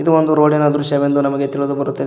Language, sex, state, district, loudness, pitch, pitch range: Kannada, male, Karnataka, Koppal, -15 LUFS, 145 Hz, 140-150 Hz